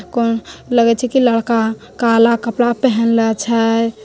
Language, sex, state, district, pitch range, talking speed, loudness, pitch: Hindi, female, Bihar, Begusarai, 225-235 Hz, 135 wpm, -15 LUFS, 230 Hz